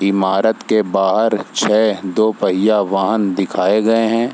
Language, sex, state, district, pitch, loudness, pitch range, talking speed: Hindi, male, Bihar, Sitamarhi, 105 Hz, -16 LUFS, 95-110 Hz, 150 wpm